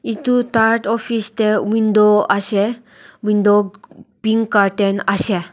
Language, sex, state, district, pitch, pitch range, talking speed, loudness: Nagamese, female, Nagaland, Dimapur, 210 Hz, 200-225 Hz, 100 wpm, -16 LUFS